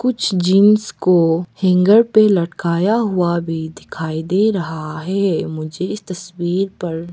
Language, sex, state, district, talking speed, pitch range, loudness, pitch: Hindi, female, Arunachal Pradesh, Papum Pare, 135 wpm, 170-200 Hz, -17 LUFS, 180 Hz